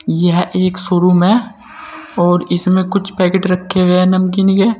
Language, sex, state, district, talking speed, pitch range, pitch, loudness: Hindi, male, Uttar Pradesh, Saharanpur, 160 wpm, 180-200 Hz, 185 Hz, -13 LUFS